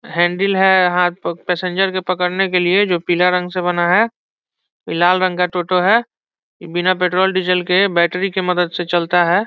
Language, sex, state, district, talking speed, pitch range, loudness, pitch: Hindi, male, Bihar, Saran, 190 wpm, 175-185 Hz, -16 LUFS, 180 Hz